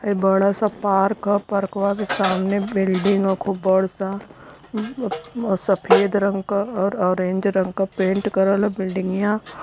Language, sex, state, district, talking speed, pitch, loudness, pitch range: Hindi, male, Uttar Pradesh, Varanasi, 155 wpm, 195 Hz, -21 LUFS, 190-200 Hz